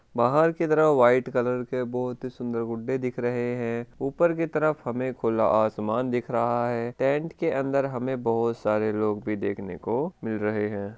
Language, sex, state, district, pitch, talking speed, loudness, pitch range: Hindi, male, Rajasthan, Churu, 120 Hz, 185 wpm, -26 LUFS, 115-135 Hz